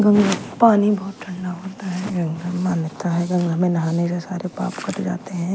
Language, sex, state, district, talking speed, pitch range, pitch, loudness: Hindi, female, Chhattisgarh, Raipur, 215 wpm, 175-195 Hz, 180 Hz, -21 LUFS